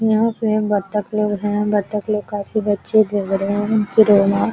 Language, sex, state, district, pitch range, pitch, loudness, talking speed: Hindi, female, Uttar Pradesh, Jalaun, 205-215 Hz, 210 Hz, -18 LUFS, 225 wpm